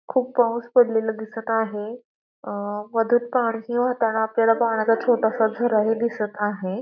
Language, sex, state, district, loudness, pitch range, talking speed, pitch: Marathi, female, Maharashtra, Pune, -22 LUFS, 220-240 Hz, 130 wpm, 225 Hz